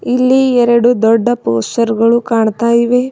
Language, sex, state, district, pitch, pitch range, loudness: Kannada, female, Karnataka, Bidar, 235 Hz, 230-245 Hz, -12 LUFS